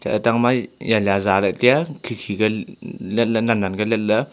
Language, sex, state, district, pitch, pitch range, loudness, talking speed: Wancho, male, Arunachal Pradesh, Longding, 110 Hz, 105-120 Hz, -20 LUFS, 180 wpm